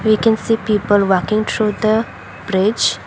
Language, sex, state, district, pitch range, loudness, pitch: English, female, Assam, Kamrup Metropolitan, 195-220 Hz, -16 LUFS, 215 Hz